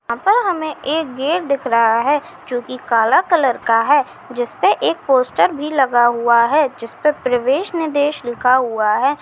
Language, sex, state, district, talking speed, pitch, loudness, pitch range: Chhattisgarhi, female, Chhattisgarh, Kabirdham, 175 wpm, 260 Hz, -16 LUFS, 240-300 Hz